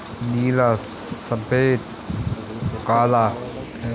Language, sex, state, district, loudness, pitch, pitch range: Hindi, male, Uttar Pradesh, Hamirpur, -22 LUFS, 115 Hz, 110-120 Hz